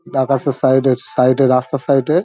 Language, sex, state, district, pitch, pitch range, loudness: Bengali, male, West Bengal, Dakshin Dinajpur, 130 Hz, 130-135 Hz, -15 LUFS